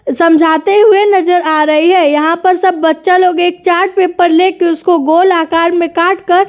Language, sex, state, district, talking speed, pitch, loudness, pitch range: Hindi, female, Uttar Pradesh, Jyotiba Phule Nagar, 195 wpm, 350 Hz, -10 LUFS, 330-370 Hz